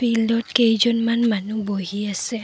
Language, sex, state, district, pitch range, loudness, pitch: Assamese, female, Assam, Kamrup Metropolitan, 205-235 Hz, -20 LUFS, 225 Hz